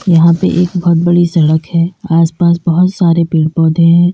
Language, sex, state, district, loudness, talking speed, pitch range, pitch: Hindi, female, Uttar Pradesh, Lalitpur, -11 LUFS, 190 wpm, 165-175 Hz, 170 Hz